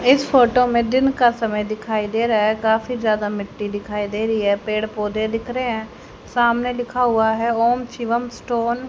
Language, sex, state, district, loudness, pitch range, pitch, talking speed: Hindi, female, Haryana, Charkhi Dadri, -20 LUFS, 215-245 Hz, 230 Hz, 200 wpm